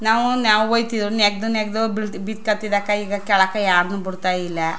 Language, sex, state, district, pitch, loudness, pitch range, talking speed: Kannada, female, Karnataka, Chamarajanagar, 210 Hz, -20 LUFS, 195-220 Hz, 175 wpm